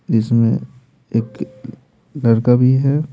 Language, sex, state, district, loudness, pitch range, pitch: Hindi, male, Bihar, Patna, -16 LUFS, 115-135 Hz, 125 Hz